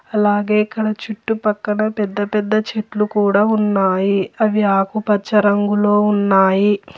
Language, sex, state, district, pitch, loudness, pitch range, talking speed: Telugu, female, Telangana, Hyderabad, 210 Hz, -17 LUFS, 200-215 Hz, 105 wpm